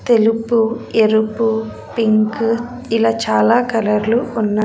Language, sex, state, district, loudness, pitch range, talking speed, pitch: Telugu, female, Andhra Pradesh, Sri Satya Sai, -16 LUFS, 215-230 Hz, 90 wpm, 225 Hz